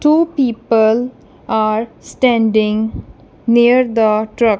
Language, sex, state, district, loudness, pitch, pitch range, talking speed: English, female, Punjab, Kapurthala, -15 LUFS, 230 Hz, 220-250 Hz, 90 wpm